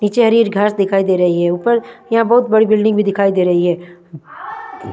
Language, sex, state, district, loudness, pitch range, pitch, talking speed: Hindi, female, Punjab, Fazilka, -14 LUFS, 175-220 Hz, 200 Hz, 205 wpm